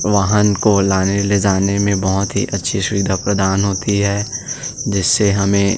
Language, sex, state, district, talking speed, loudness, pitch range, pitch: Hindi, male, Chhattisgarh, Sukma, 165 wpm, -16 LUFS, 95-100 Hz, 100 Hz